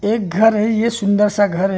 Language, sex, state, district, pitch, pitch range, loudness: Hindi, male, Arunachal Pradesh, Longding, 210 Hz, 200-220 Hz, -16 LUFS